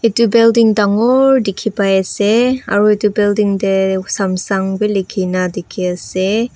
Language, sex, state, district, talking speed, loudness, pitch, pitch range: Nagamese, female, Nagaland, Kohima, 135 wpm, -14 LUFS, 205 Hz, 190-225 Hz